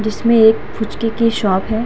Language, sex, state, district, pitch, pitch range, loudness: Hindi, female, Uttar Pradesh, Hamirpur, 220 Hz, 215-230 Hz, -15 LUFS